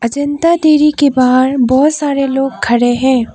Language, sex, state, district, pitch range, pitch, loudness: Hindi, female, Arunachal Pradesh, Papum Pare, 255-290 Hz, 270 Hz, -11 LUFS